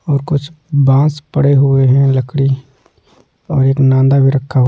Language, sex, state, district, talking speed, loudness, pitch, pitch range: Hindi, male, Delhi, New Delhi, 155 wpm, -12 LUFS, 135 Hz, 135-145 Hz